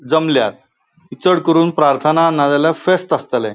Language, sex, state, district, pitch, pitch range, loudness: Konkani, male, Goa, North and South Goa, 160 Hz, 145-165 Hz, -15 LUFS